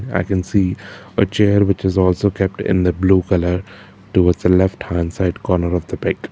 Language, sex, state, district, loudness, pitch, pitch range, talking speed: English, male, Karnataka, Bangalore, -17 LUFS, 95 Hz, 90-100 Hz, 210 wpm